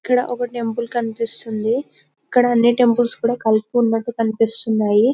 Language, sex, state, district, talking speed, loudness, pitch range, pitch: Telugu, female, Telangana, Karimnagar, 130 wpm, -18 LUFS, 225-245 Hz, 235 Hz